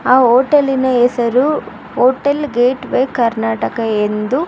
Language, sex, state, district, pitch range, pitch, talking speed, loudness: Kannada, female, Karnataka, Bangalore, 235-270 Hz, 255 Hz, 135 wpm, -14 LUFS